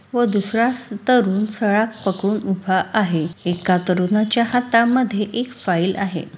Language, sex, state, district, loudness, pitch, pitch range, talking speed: Marathi, female, Maharashtra, Sindhudurg, -19 LUFS, 210 Hz, 185-230 Hz, 120 wpm